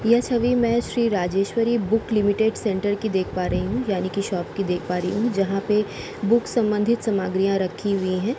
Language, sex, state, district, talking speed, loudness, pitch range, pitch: Hindi, female, Uttar Pradesh, Jalaun, 220 wpm, -22 LUFS, 195-230 Hz, 205 Hz